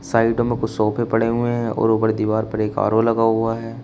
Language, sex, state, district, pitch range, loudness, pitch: Hindi, male, Uttar Pradesh, Shamli, 110-115 Hz, -19 LUFS, 115 Hz